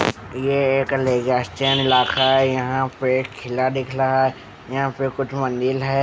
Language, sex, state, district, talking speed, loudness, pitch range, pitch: Hindi, male, Odisha, Khordha, 150 wpm, -20 LUFS, 130-135 Hz, 130 Hz